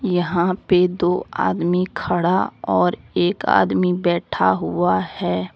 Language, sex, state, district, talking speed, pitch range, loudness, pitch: Hindi, female, Jharkhand, Deoghar, 120 wpm, 170-180 Hz, -19 LUFS, 175 Hz